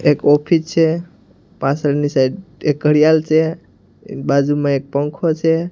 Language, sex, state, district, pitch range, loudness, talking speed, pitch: Gujarati, male, Gujarat, Gandhinagar, 140-160 Hz, -16 LUFS, 125 wpm, 150 Hz